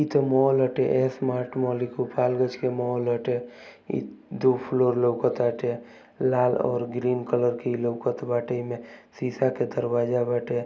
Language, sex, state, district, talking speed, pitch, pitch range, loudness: Bhojpuri, male, Bihar, Gopalganj, 165 wpm, 125 Hz, 120-130 Hz, -25 LUFS